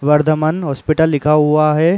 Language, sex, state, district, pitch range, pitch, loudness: Hindi, male, Uttar Pradesh, Muzaffarnagar, 150-155 Hz, 155 Hz, -14 LUFS